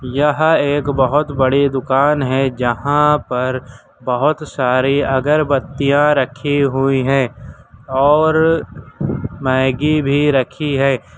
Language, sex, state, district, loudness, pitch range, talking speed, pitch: Hindi, male, Uttar Pradesh, Lucknow, -16 LUFS, 130-145 Hz, 100 wpm, 140 Hz